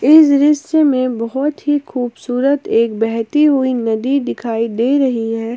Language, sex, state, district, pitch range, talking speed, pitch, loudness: Hindi, female, Jharkhand, Palamu, 230-290 Hz, 150 wpm, 255 Hz, -15 LUFS